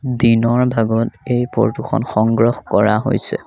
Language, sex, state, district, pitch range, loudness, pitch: Assamese, male, Assam, Sonitpur, 115-125 Hz, -16 LUFS, 115 Hz